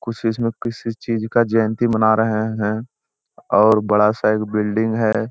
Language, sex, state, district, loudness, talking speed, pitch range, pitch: Hindi, male, Bihar, Jamui, -19 LUFS, 170 wpm, 110-115 Hz, 110 Hz